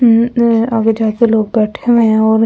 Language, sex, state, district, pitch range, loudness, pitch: Hindi, female, Delhi, New Delhi, 220-235 Hz, -12 LUFS, 225 Hz